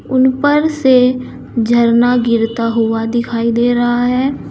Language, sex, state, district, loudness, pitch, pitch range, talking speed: Hindi, female, Uttar Pradesh, Saharanpur, -13 LUFS, 240 Hz, 230-255 Hz, 135 wpm